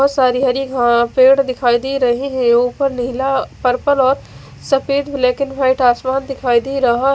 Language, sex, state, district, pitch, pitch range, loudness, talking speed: Hindi, female, Odisha, Khordha, 260 Hz, 245-275 Hz, -15 LUFS, 170 wpm